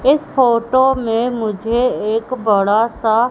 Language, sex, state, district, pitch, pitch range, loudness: Hindi, female, Madhya Pradesh, Katni, 230 Hz, 220-255 Hz, -16 LUFS